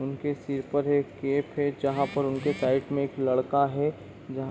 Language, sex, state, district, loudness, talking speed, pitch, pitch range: Hindi, male, Bihar, East Champaran, -28 LUFS, 215 wpm, 140 Hz, 135-145 Hz